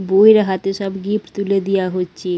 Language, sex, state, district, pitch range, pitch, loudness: Bengali, female, West Bengal, Dakshin Dinajpur, 185-200 Hz, 195 Hz, -17 LUFS